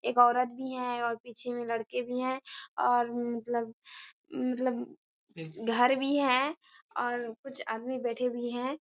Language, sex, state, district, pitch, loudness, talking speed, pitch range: Hindi, female, Bihar, Kishanganj, 245 Hz, -31 LUFS, 150 wpm, 240-260 Hz